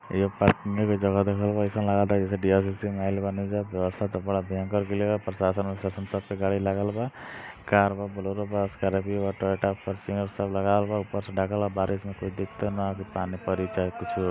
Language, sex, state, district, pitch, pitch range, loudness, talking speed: Maithili, male, Bihar, Samastipur, 100 Hz, 95-100 Hz, -27 LUFS, 220 wpm